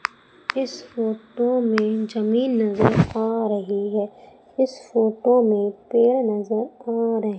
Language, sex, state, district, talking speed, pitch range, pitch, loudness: Hindi, female, Madhya Pradesh, Umaria, 120 wpm, 215-245 Hz, 225 Hz, -22 LUFS